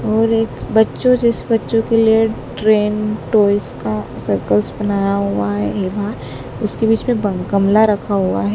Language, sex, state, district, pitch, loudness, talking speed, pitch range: Hindi, female, Madhya Pradesh, Dhar, 210 Hz, -16 LUFS, 170 wpm, 185-225 Hz